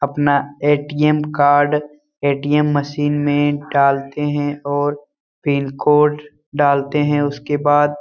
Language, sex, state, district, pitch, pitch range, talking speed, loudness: Hindi, male, Bihar, Lakhisarai, 145 Hz, 145-150 Hz, 120 wpm, -17 LUFS